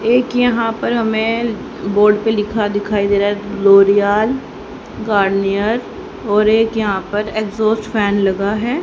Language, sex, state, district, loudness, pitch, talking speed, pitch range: Hindi, female, Haryana, Rohtak, -15 LUFS, 210 Hz, 145 wpm, 205-225 Hz